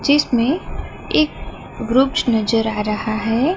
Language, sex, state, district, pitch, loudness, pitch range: Hindi, female, Gujarat, Gandhinagar, 235 Hz, -18 LUFS, 220-285 Hz